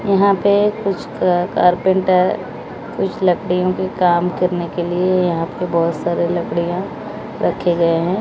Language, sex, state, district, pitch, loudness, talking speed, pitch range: Hindi, female, Odisha, Malkangiri, 180 Hz, -17 LUFS, 145 wpm, 175-190 Hz